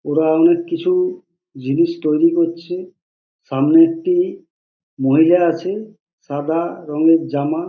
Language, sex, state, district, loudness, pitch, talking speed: Bengali, male, West Bengal, Purulia, -17 LUFS, 170 Hz, 110 wpm